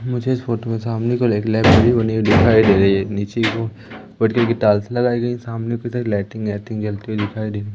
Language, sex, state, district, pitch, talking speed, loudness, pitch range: Hindi, male, Madhya Pradesh, Umaria, 110 Hz, 210 wpm, -18 LUFS, 105-120 Hz